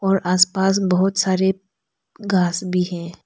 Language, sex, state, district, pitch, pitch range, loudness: Hindi, female, Arunachal Pradesh, Lower Dibang Valley, 190 Hz, 180-195 Hz, -19 LUFS